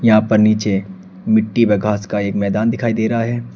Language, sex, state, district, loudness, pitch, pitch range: Hindi, male, Uttar Pradesh, Shamli, -16 LUFS, 110 Hz, 100-110 Hz